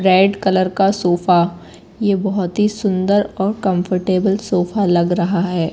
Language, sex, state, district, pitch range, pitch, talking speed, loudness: Hindi, female, Madhya Pradesh, Katni, 180-200 Hz, 190 Hz, 145 wpm, -17 LUFS